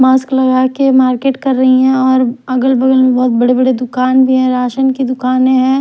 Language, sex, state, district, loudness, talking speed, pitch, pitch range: Hindi, female, Odisha, Khordha, -11 LUFS, 215 wpm, 260 Hz, 255-260 Hz